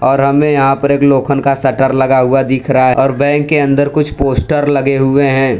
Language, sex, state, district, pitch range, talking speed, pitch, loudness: Hindi, male, Gujarat, Valsad, 135-140 Hz, 235 wpm, 135 Hz, -11 LUFS